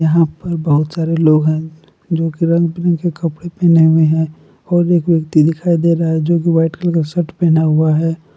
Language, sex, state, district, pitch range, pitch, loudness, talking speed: Hindi, male, Jharkhand, Palamu, 160-170 Hz, 165 Hz, -14 LUFS, 215 wpm